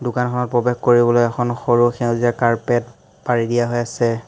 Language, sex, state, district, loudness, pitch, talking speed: Assamese, male, Assam, Hailakandi, -18 LUFS, 120 Hz, 155 wpm